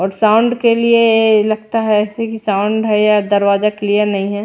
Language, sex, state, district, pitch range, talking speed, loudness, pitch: Hindi, female, Bihar, Patna, 205-225 Hz, 200 wpm, -14 LUFS, 215 Hz